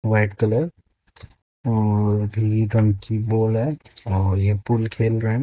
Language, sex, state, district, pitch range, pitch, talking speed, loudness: Hindi, male, Haryana, Jhajjar, 105-115 Hz, 110 Hz, 145 wpm, -21 LUFS